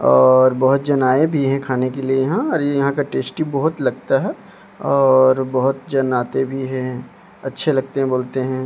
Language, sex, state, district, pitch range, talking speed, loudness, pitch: Hindi, male, Odisha, Sambalpur, 130-140 Hz, 195 wpm, -18 LUFS, 135 Hz